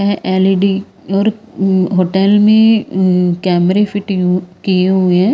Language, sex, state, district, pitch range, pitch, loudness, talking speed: Hindi, female, Himachal Pradesh, Shimla, 185-205 Hz, 190 Hz, -13 LUFS, 125 wpm